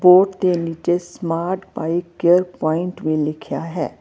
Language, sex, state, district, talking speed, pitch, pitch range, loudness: Punjabi, female, Karnataka, Bangalore, 150 wpm, 175 Hz, 165-180 Hz, -20 LUFS